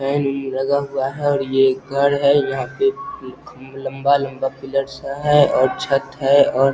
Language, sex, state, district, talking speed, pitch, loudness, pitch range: Hindi, male, Bihar, Vaishali, 140 wpm, 140 Hz, -18 LUFS, 135-140 Hz